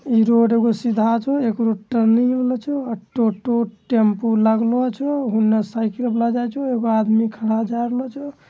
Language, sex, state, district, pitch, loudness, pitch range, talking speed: Angika, male, Bihar, Bhagalpur, 230 Hz, -19 LUFS, 225-250 Hz, 195 wpm